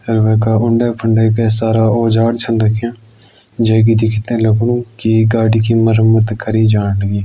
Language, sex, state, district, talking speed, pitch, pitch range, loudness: Garhwali, male, Uttarakhand, Uttarkashi, 175 wpm, 110 Hz, 110-115 Hz, -13 LUFS